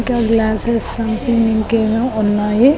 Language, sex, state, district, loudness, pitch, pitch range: Telugu, female, Telangana, Nalgonda, -16 LUFS, 225 Hz, 220-235 Hz